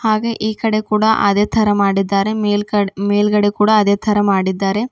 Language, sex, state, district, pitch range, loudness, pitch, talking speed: Kannada, female, Karnataka, Bidar, 200-215 Hz, -15 LUFS, 210 Hz, 160 wpm